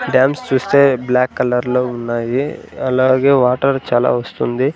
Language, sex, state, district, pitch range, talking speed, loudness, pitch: Telugu, male, Andhra Pradesh, Sri Satya Sai, 125-135 Hz, 115 wpm, -16 LUFS, 130 Hz